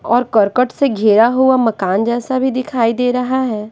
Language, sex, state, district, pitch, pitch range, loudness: Hindi, female, Bihar, West Champaran, 245 Hz, 220-255 Hz, -15 LUFS